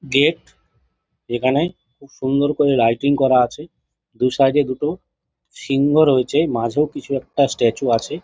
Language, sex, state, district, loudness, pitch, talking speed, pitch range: Bengali, male, West Bengal, Jhargram, -18 LUFS, 135 Hz, 130 wpm, 125-145 Hz